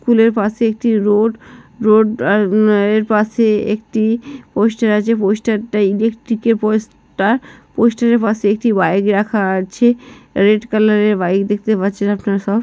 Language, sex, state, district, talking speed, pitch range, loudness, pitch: Bengali, female, West Bengal, Jhargram, 160 wpm, 205-225 Hz, -15 LUFS, 215 Hz